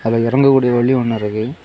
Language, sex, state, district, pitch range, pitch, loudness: Tamil, male, Tamil Nadu, Kanyakumari, 115-130 Hz, 120 Hz, -15 LUFS